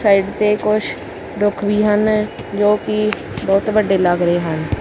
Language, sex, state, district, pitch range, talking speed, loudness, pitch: Punjabi, male, Punjab, Kapurthala, 195-215 Hz, 150 wpm, -17 LUFS, 210 Hz